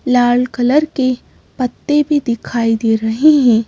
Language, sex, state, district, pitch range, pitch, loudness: Hindi, female, Madhya Pradesh, Bhopal, 235-290 Hz, 250 Hz, -14 LUFS